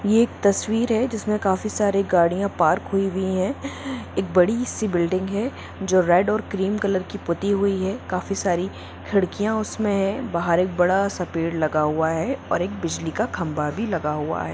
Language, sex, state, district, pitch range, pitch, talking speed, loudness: Hindi, female, Jharkhand, Sahebganj, 175-210 Hz, 195 Hz, 195 wpm, -23 LUFS